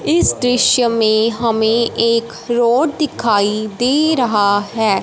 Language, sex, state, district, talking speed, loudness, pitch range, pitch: Hindi, female, Punjab, Fazilka, 120 wpm, -15 LUFS, 220-250 Hz, 230 Hz